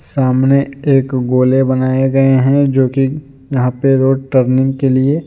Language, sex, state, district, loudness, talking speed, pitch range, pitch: Hindi, male, Jharkhand, Deoghar, -13 LUFS, 160 wpm, 130-135 Hz, 135 Hz